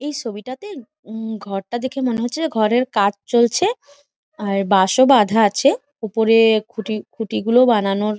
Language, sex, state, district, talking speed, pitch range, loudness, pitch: Bengali, female, West Bengal, Jhargram, 140 wpm, 210-260 Hz, -18 LUFS, 225 Hz